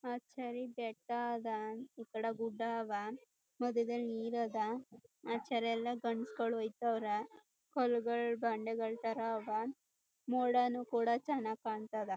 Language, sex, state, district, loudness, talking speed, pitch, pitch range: Kannada, female, Karnataka, Chamarajanagar, -38 LUFS, 100 wpm, 230 Hz, 225-240 Hz